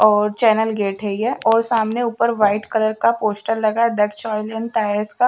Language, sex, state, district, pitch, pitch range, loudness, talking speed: Hindi, female, Maharashtra, Gondia, 220 Hz, 210-230 Hz, -19 LUFS, 215 wpm